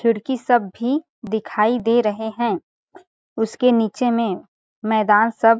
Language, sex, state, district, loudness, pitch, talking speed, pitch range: Hindi, female, Chhattisgarh, Balrampur, -20 LUFS, 230 Hz, 140 wpm, 220-245 Hz